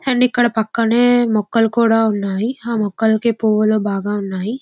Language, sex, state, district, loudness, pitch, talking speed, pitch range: Telugu, female, Andhra Pradesh, Visakhapatnam, -16 LUFS, 225 Hz, 155 wpm, 215-235 Hz